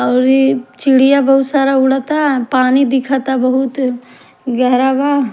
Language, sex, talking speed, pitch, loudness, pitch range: Bhojpuri, female, 125 wpm, 265 Hz, -13 LUFS, 250-275 Hz